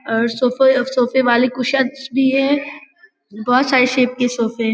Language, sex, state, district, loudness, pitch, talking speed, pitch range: Hindi, female, Bihar, Vaishali, -16 LUFS, 255 Hz, 165 wpm, 245-270 Hz